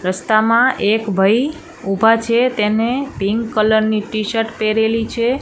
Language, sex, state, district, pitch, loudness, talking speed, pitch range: Gujarati, female, Gujarat, Gandhinagar, 220 Hz, -16 LUFS, 135 wpm, 215-235 Hz